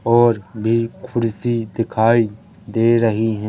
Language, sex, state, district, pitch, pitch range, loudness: Hindi, male, Madhya Pradesh, Katni, 115 Hz, 110-115 Hz, -18 LUFS